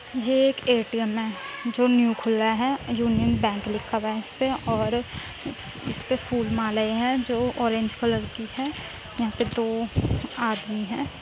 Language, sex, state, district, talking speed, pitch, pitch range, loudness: Hindi, female, Uttar Pradesh, Muzaffarnagar, 140 wpm, 230 Hz, 220-250 Hz, -25 LUFS